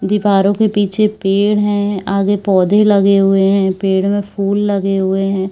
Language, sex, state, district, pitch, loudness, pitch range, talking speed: Hindi, female, Chhattisgarh, Bilaspur, 200 Hz, -14 LUFS, 195-205 Hz, 185 wpm